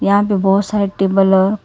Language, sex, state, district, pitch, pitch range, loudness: Hindi, female, Karnataka, Bangalore, 195 Hz, 195-200 Hz, -14 LUFS